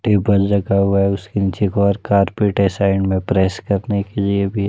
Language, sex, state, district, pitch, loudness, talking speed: Hindi, male, Himachal Pradesh, Shimla, 100 Hz, -17 LUFS, 230 wpm